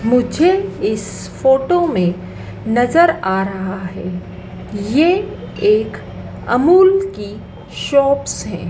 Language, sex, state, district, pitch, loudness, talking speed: Hindi, female, Madhya Pradesh, Dhar, 250 Hz, -16 LUFS, 95 wpm